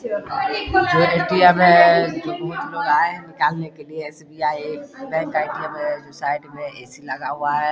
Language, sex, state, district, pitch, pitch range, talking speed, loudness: Hindi, male, Bihar, Vaishali, 165 Hz, 150-180 Hz, 170 wpm, -19 LUFS